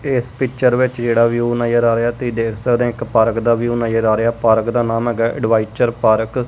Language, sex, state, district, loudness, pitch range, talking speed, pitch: Punjabi, female, Punjab, Kapurthala, -16 LUFS, 115-120 Hz, 240 wpm, 120 Hz